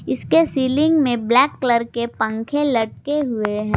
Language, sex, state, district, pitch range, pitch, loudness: Hindi, female, Jharkhand, Garhwa, 230-290 Hz, 245 Hz, -19 LUFS